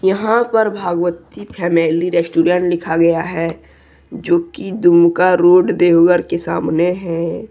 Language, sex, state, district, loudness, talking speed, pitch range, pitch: Hindi, male, Jharkhand, Deoghar, -15 LUFS, 130 wpm, 170-185 Hz, 175 Hz